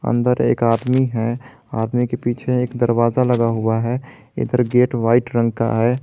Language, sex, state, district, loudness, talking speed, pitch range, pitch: Hindi, male, Jharkhand, Garhwa, -19 LUFS, 180 wpm, 115-125 Hz, 120 Hz